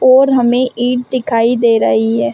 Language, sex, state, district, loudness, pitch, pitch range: Hindi, female, Chhattisgarh, Rajnandgaon, -13 LUFS, 240 Hz, 225-255 Hz